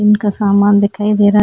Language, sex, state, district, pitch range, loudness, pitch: Hindi, female, Chhattisgarh, Korba, 205-210 Hz, -12 LUFS, 205 Hz